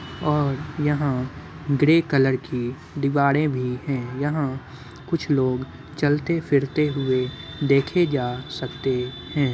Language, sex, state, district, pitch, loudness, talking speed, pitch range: Hindi, male, Bihar, Muzaffarpur, 140 Hz, -23 LUFS, 105 wpm, 130-150 Hz